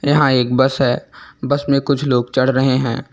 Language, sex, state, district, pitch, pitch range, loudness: Hindi, male, Uttar Pradesh, Lucknow, 135 Hz, 130-140 Hz, -16 LUFS